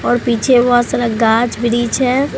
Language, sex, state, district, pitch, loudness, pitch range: Hindi, female, Bihar, Katihar, 240 Hz, -14 LUFS, 235-250 Hz